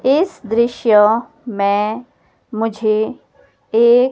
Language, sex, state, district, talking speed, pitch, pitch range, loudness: Hindi, female, Himachal Pradesh, Shimla, 75 wpm, 230 Hz, 215-245 Hz, -16 LUFS